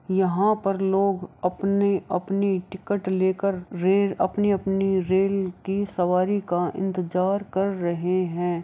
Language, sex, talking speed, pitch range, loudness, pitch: Maithili, female, 110 wpm, 180-195 Hz, -24 LUFS, 190 Hz